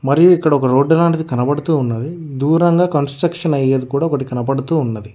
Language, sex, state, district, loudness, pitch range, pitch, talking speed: Telugu, male, Telangana, Hyderabad, -16 LUFS, 135-165 Hz, 145 Hz, 165 wpm